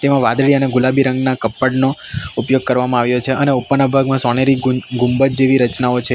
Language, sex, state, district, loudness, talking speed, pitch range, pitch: Gujarati, male, Gujarat, Valsad, -15 LUFS, 185 wpm, 125-135 Hz, 130 Hz